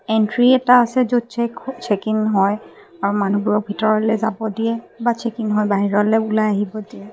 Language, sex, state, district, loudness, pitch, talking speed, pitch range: Assamese, female, Assam, Kamrup Metropolitan, -18 LUFS, 220 Hz, 170 wpm, 210-235 Hz